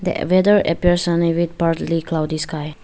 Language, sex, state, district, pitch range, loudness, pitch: English, female, Arunachal Pradesh, Lower Dibang Valley, 160-175 Hz, -18 LUFS, 170 Hz